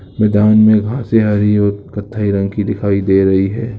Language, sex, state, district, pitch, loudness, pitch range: Hindi, male, Uttar Pradesh, Muzaffarnagar, 105 Hz, -13 LUFS, 100-110 Hz